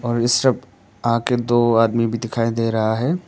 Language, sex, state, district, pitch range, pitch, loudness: Hindi, male, Arunachal Pradesh, Papum Pare, 115-120 Hz, 115 Hz, -19 LUFS